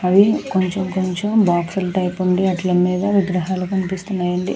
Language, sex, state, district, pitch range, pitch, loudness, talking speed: Telugu, female, Andhra Pradesh, Krishna, 180-190 Hz, 185 Hz, -19 LUFS, 130 wpm